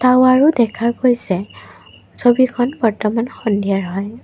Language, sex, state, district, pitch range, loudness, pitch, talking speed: Assamese, female, Assam, Kamrup Metropolitan, 210-250 Hz, -16 LUFS, 235 Hz, 100 wpm